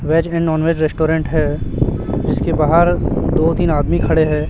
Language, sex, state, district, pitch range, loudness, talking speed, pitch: Hindi, male, Chhattisgarh, Raipur, 155-160 Hz, -16 LUFS, 160 wpm, 160 Hz